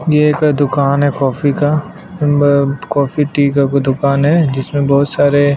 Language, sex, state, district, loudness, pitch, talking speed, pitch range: Hindi, male, Chhattisgarh, Sukma, -13 LUFS, 145 Hz, 170 wpm, 140-150 Hz